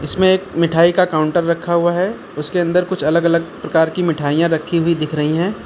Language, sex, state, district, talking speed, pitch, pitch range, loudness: Hindi, male, Uttar Pradesh, Lucknow, 225 wpm, 170 Hz, 160-180 Hz, -16 LUFS